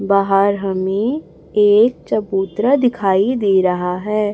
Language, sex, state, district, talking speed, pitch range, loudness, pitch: Hindi, female, Chhattisgarh, Raipur, 110 wpm, 195-220 Hz, -16 LUFS, 200 Hz